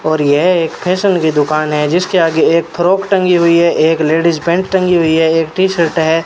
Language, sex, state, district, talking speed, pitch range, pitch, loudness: Hindi, male, Rajasthan, Bikaner, 230 wpm, 160-180 Hz, 165 Hz, -12 LUFS